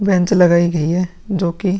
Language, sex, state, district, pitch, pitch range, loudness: Hindi, female, Bihar, Vaishali, 180 Hz, 170-190 Hz, -16 LUFS